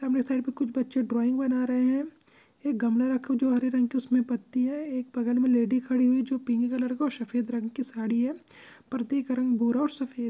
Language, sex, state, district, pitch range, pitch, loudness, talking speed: Hindi, male, Andhra Pradesh, Guntur, 245-260 Hz, 255 Hz, -27 LUFS, 220 wpm